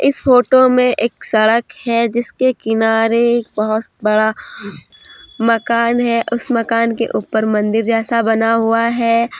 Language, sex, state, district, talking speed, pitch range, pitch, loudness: Hindi, female, Jharkhand, Deoghar, 135 wpm, 225-240 Hz, 230 Hz, -15 LUFS